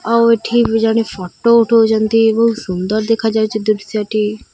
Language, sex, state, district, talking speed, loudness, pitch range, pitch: Odia, female, Odisha, Khordha, 130 wpm, -14 LUFS, 215-230 Hz, 220 Hz